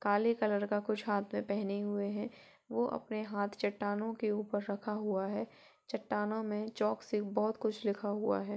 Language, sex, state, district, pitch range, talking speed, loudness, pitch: Hindi, female, Uttar Pradesh, Etah, 205-215 Hz, 195 wpm, -36 LUFS, 210 Hz